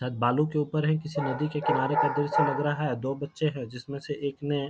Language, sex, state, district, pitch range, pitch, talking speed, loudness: Hindi, male, Bihar, Jamui, 140-150 Hz, 145 Hz, 255 wpm, -28 LUFS